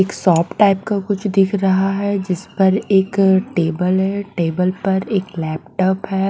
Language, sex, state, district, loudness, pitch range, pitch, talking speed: Hindi, female, Bihar, West Champaran, -17 LUFS, 185-200 Hz, 195 Hz, 170 wpm